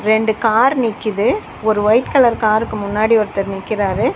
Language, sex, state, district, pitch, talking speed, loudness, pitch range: Tamil, female, Tamil Nadu, Chennai, 220 Hz, 145 wpm, -16 LUFS, 210-225 Hz